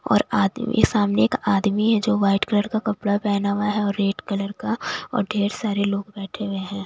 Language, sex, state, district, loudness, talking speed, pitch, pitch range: Hindi, female, Bihar, West Champaran, -22 LUFS, 220 wpm, 205 Hz, 200-215 Hz